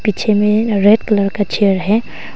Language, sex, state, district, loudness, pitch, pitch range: Hindi, female, Arunachal Pradesh, Longding, -14 LUFS, 210 Hz, 200-215 Hz